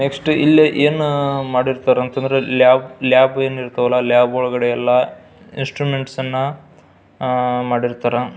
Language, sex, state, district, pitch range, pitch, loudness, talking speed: Kannada, male, Karnataka, Belgaum, 125-135 Hz, 130 Hz, -17 LUFS, 105 wpm